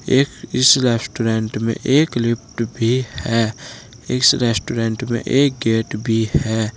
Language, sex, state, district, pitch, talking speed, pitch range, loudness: Hindi, male, Uttar Pradesh, Saharanpur, 115 Hz, 135 wpm, 115-130 Hz, -18 LUFS